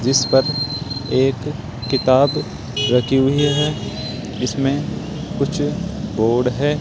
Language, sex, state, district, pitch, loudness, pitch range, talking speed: Hindi, male, Rajasthan, Jaipur, 135 Hz, -19 LUFS, 125-145 Hz, 95 wpm